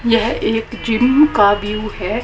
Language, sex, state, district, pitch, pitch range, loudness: Hindi, female, Haryana, Rohtak, 225 Hz, 215-235 Hz, -16 LUFS